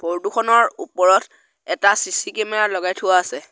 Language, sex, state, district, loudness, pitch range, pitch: Assamese, male, Assam, Sonitpur, -18 LUFS, 185-215 Hz, 190 Hz